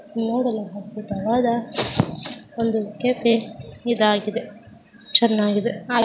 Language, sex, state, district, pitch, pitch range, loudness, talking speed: Kannada, female, Karnataka, Dakshina Kannada, 225 Hz, 210-235 Hz, -21 LUFS, 50 wpm